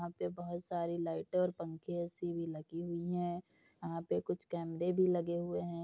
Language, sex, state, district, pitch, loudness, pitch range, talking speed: Hindi, female, Uttar Pradesh, Etah, 170 Hz, -38 LUFS, 165-175 Hz, 205 wpm